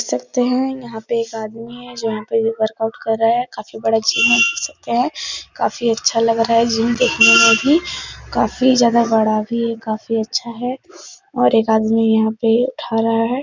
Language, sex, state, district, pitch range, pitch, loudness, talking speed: Hindi, female, Uttar Pradesh, Etah, 225-245 Hz, 230 Hz, -16 LUFS, 195 wpm